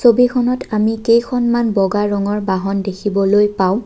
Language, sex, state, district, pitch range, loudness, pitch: Assamese, female, Assam, Kamrup Metropolitan, 195-240 Hz, -16 LUFS, 210 Hz